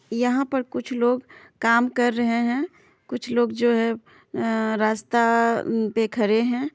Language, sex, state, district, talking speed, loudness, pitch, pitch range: Hindi, female, Bihar, Madhepura, 140 wpm, -22 LUFS, 235 Hz, 225-245 Hz